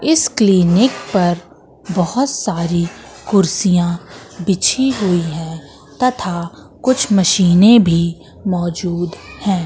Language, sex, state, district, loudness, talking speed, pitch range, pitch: Hindi, female, Madhya Pradesh, Katni, -15 LUFS, 95 wpm, 175-210 Hz, 185 Hz